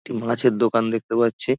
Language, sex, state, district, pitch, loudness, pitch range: Bengali, male, West Bengal, Dakshin Dinajpur, 115 Hz, -21 LUFS, 115-120 Hz